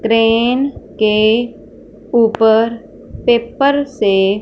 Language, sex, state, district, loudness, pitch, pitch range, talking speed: Hindi, female, Punjab, Fazilka, -14 LUFS, 225 Hz, 220-240 Hz, 80 wpm